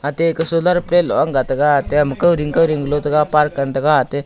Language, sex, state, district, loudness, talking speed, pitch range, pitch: Wancho, male, Arunachal Pradesh, Longding, -16 LUFS, 270 wpm, 140-165 Hz, 150 Hz